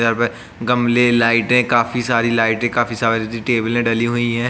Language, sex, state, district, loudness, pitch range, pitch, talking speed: Hindi, male, Uttar Pradesh, Jalaun, -17 LUFS, 115-120 Hz, 115 Hz, 175 wpm